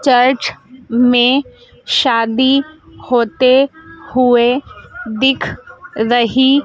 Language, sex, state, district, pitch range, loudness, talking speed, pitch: Hindi, female, Madhya Pradesh, Dhar, 245-275 Hz, -14 LUFS, 65 wpm, 255 Hz